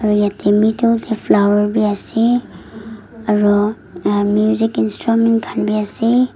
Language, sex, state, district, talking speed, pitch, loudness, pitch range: Nagamese, female, Nagaland, Dimapur, 125 wpm, 215 Hz, -16 LUFS, 205-225 Hz